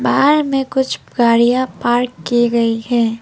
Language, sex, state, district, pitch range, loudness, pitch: Hindi, female, Assam, Kamrup Metropolitan, 235-265 Hz, -15 LUFS, 240 Hz